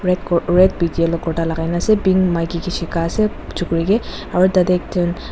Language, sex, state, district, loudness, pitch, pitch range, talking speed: Nagamese, female, Nagaland, Dimapur, -18 LUFS, 175 Hz, 170-185 Hz, 225 wpm